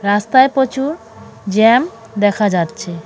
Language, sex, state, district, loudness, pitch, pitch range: Bengali, female, West Bengal, Cooch Behar, -15 LUFS, 215 Hz, 200-260 Hz